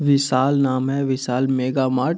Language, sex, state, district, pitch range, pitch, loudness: Hindi, male, Bihar, Kishanganj, 130-140 Hz, 130 Hz, -20 LUFS